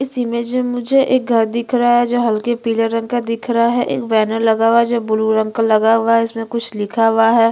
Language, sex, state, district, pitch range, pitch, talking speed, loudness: Hindi, female, Chhattisgarh, Bastar, 225-240 Hz, 230 Hz, 270 wpm, -16 LUFS